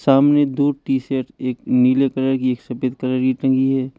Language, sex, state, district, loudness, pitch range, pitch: Hindi, male, Uttar Pradesh, Lalitpur, -19 LUFS, 130-135 Hz, 130 Hz